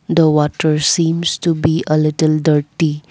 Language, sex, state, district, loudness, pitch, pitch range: English, female, Assam, Kamrup Metropolitan, -15 LUFS, 155 Hz, 150-165 Hz